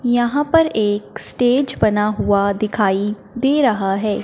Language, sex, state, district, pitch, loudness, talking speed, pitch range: Hindi, male, Punjab, Fazilka, 215 Hz, -17 LUFS, 140 wpm, 205-250 Hz